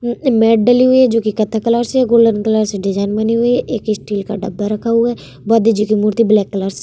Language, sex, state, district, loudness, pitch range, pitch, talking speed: Hindi, female, Bihar, Vaishali, -14 LUFS, 210-235 Hz, 225 Hz, 265 wpm